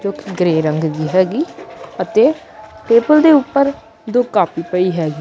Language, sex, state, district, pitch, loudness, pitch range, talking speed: Punjabi, male, Punjab, Kapurthala, 215 Hz, -15 LUFS, 175-280 Hz, 150 wpm